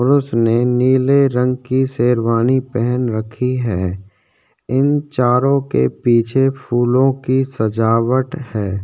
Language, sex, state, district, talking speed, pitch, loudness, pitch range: Hindi, male, Chhattisgarh, Korba, 115 wpm, 125 Hz, -16 LUFS, 115-130 Hz